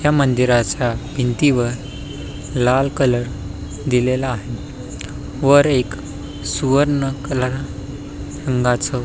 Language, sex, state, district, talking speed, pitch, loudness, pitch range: Marathi, male, Maharashtra, Pune, 80 wpm, 125 Hz, -18 LUFS, 115-135 Hz